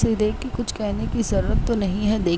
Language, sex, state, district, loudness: Hindi, female, Uttar Pradesh, Jalaun, -23 LUFS